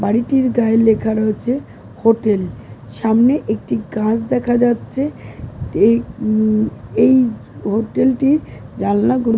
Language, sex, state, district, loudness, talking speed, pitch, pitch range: Bengali, female, West Bengal, Jalpaiguri, -17 LUFS, 130 wpm, 225 Hz, 215-250 Hz